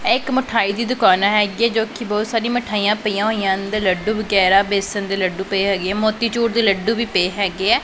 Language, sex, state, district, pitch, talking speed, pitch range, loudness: Punjabi, female, Punjab, Pathankot, 210 Hz, 230 wpm, 195-230 Hz, -18 LUFS